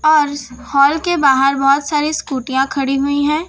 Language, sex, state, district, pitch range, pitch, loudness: Hindi, female, Gujarat, Valsad, 275-300 Hz, 280 Hz, -15 LUFS